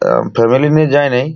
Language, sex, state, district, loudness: Bengali, male, West Bengal, Purulia, -12 LUFS